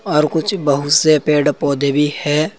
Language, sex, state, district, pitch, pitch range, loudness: Hindi, male, Uttar Pradesh, Saharanpur, 150 Hz, 145-155 Hz, -15 LUFS